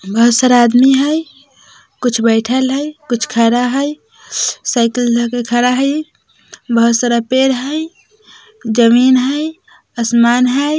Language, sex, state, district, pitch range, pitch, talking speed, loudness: Bajjika, female, Bihar, Vaishali, 235-290 Hz, 255 Hz, 120 wpm, -13 LUFS